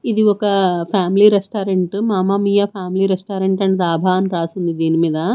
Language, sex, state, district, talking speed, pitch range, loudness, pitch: Telugu, female, Andhra Pradesh, Manyam, 155 wpm, 180-200 Hz, -16 LUFS, 190 Hz